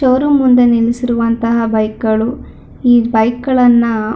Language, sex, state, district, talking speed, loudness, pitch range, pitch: Kannada, female, Karnataka, Shimoga, 130 wpm, -12 LUFS, 230-250 Hz, 235 Hz